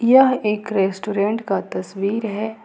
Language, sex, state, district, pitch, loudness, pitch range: Hindi, female, Jharkhand, Ranchi, 210 Hz, -20 LUFS, 200-225 Hz